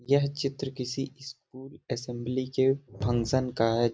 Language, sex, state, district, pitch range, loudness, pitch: Hindi, male, Bihar, Gopalganj, 120-135 Hz, -29 LUFS, 130 Hz